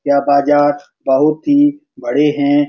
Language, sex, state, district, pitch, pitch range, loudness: Hindi, male, Bihar, Supaul, 145 Hz, 140-155 Hz, -14 LUFS